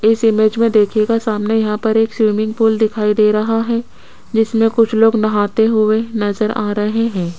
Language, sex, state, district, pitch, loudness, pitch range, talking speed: Hindi, female, Rajasthan, Jaipur, 220 Hz, -15 LUFS, 215-225 Hz, 185 wpm